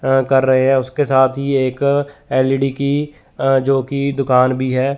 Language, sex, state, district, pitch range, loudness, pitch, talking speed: Hindi, male, Chandigarh, Chandigarh, 130-140 Hz, -16 LUFS, 135 Hz, 170 wpm